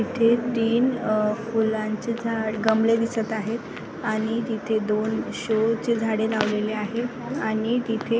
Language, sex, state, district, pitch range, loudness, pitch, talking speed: Marathi, female, Maharashtra, Washim, 220-235 Hz, -24 LUFS, 225 Hz, 130 wpm